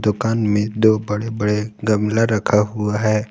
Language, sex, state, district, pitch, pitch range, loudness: Hindi, male, Jharkhand, Garhwa, 105 Hz, 105-110 Hz, -19 LUFS